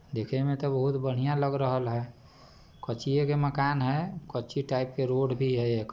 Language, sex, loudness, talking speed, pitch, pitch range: Bajjika, male, -29 LUFS, 190 wpm, 135 Hz, 130-140 Hz